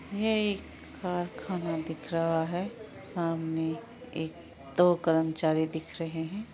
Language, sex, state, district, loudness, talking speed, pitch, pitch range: Hindi, female, Bihar, Araria, -31 LUFS, 120 wpm, 165 Hz, 160-190 Hz